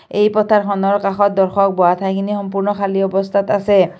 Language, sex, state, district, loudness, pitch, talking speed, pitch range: Assamese, female, Assam, Kamrup Metropolitan, -16 LUFS, 200 Hz, 150 wpm, 195-205 Hz